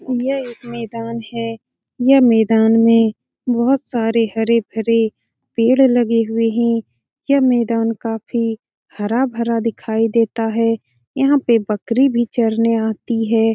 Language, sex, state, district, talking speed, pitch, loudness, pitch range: Hindi, female, Bihar, Saran, 125 wpm, 230 Hz, -17 LUFS, 225-240 Hz